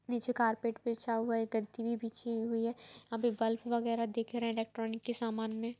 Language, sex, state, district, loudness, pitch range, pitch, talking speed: Hindi, female, Bihar, Saran, -36 LUFS, 225-235 Hz, 230 Hz, 225 wpm